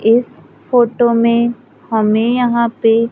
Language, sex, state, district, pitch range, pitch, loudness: Hindi, female, Maharashtra, Gondia, 225-240 Hz, 235 Hz, -14 LUFS